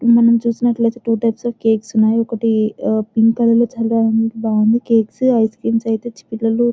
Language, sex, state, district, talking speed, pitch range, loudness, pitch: Telugu, female, Telangana, Nalgonda, 160 wpm, 225-235 Hz, -16 LUFS, 230 Hz